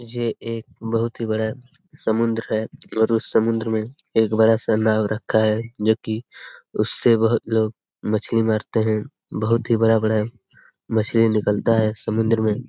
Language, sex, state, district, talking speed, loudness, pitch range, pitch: Hindi, male, Bihar, Araria, 150 wpm, -21 LUFS, 110-115 Hz, 110 Hz